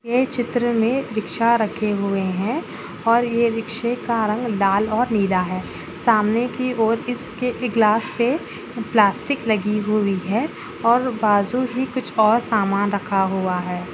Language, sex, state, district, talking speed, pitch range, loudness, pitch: Hindi, female, Bihar, Bhagalpur, 150 wpm, 205-240 Hz, -20 LUFS, 225 Hz